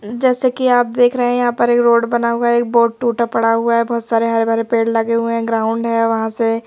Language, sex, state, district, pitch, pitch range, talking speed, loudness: Hindi, female, Madhya Pradesh, Bhopal, 235 Hz, 230-240 Hz, 270 wpm, -15 LUFS